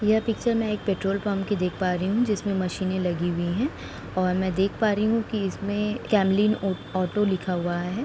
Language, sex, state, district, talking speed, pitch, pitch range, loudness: Hindi, female, Uttar Pradesh, Etah, 225 wpm, 195 Hz, 185-215 Hz, -25 LUFS